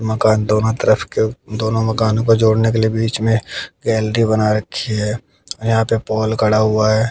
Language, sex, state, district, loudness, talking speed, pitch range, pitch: Hindi, male, Haryana, Jhajjar, -17 LUFS, 185 wpm, 110-115 Hz, 110 Hz